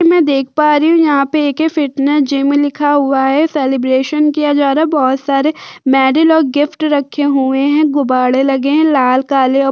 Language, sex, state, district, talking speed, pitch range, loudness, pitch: Hindi, female, Uttar Pradesh, Budaun, 205 wpm, 270-300 Hz, -12 LUFS, 285 Hz